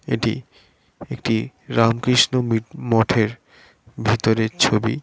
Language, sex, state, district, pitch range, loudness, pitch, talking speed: Bengali, male, West Bengal, Dakshin Dinajpur, 110-125 Hz, -20 LUFS, 115 Hz, 70 wpm